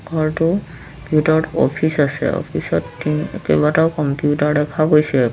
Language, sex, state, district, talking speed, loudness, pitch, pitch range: Assamese, female, Assam, Sonitpur, 115 wpm, -18 LUFS, 150 Hz, 140-155 Hz